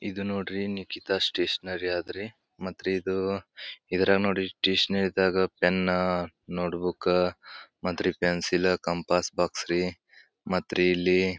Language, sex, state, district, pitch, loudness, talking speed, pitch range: Kannada, male, Karnataka, Bijapur, 90 Hz, -27 LUFS, 100 wpm, 90-95 Hz